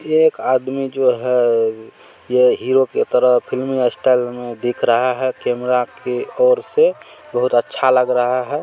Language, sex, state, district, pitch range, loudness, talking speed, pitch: Maithili, male, Bihar, Supaul, 125-130 Hz, -17 LUFS, 160 wpm, 125 Hz